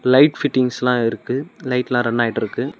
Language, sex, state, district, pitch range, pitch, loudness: Tamil, male, Tamil Nadu, Namakkal, 120-140 Hz, 125 Hz, -19 LUFS